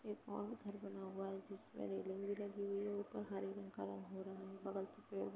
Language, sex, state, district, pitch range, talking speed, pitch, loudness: Hindi, female, Uttar Pradesh, Jalaun, 190-200 Hz, 280 wpm, 195 Hz, -47 LUFS